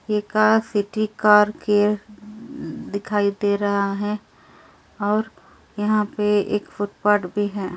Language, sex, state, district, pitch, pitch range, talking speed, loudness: Hindi, female, Delhi, New Delhi, 210 Hz, 205-215 Hz, 125 wpm, -21 LUFS